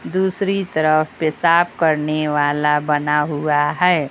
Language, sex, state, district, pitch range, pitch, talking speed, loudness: Hindi, female, Bihar, West Champaran, 150-175 Hz, 155 Hz, 115 wpm, -18 LUFS